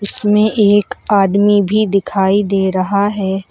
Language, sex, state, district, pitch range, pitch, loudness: Hindi, female, Uttar Pradesh, Lucknow, 195-205 Hz, 200 Hz, -14 LUFS